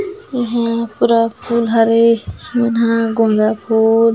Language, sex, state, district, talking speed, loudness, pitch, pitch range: Chhattisgarhi, female, Chhattisgarh, Jashpur, 115 wpm, -15 LUFS, 230 Hz, 225-235 Hz